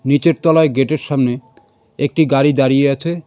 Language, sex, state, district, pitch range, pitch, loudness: Bengali, male, West Bengal, Cooch Behar, 135-160 Hz, 145 Hz, -15 LUFS